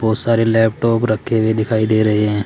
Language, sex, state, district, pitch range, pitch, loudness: Hindi, male, Uttar Pradesh, Saharanpur, 110-115 Hz, 110 Hz, -16 LUFS